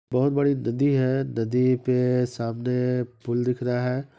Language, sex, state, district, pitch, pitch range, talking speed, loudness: Hindi, male, Bihar, East Champaran, 125 Hz, 125-130 Hz, 160 wpm, -24 LUFS